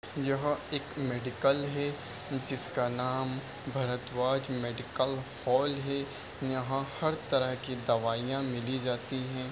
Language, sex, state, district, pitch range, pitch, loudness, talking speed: Hindi, male, Bihar, Lakhisarai, 125-140 Hz, 130 Hz, -32 LUFS, 115 wpm